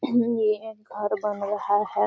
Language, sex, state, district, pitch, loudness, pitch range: Hindi, female, Bihar, Gaya, 210 Hz, -26 LUFS, 205-220 Hz